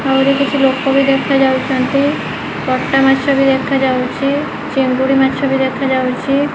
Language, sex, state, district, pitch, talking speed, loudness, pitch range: Odia, female, Odisha, Khordha, 270 Hz, 120 wpm, -14 LUFS, 265-275 Hz